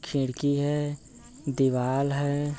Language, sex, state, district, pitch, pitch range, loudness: Hindi, male, Chhattisgarh, Bilaspur, 140 Hz, 135-145 Hz, -27 LUFS